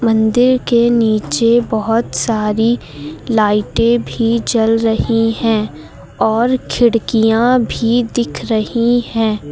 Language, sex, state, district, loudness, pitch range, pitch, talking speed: Hindi, female, Uttar Pradesh, Lucknow, -14 LUFS, 220-235 Hz, 225 Hz, 100 wpm